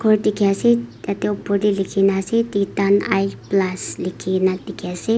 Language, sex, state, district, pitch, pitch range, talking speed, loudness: Nagamese, female, Nagaland, Kohima, 200 Hz, 195-210 Hz, 175 wpm, -20 LUFS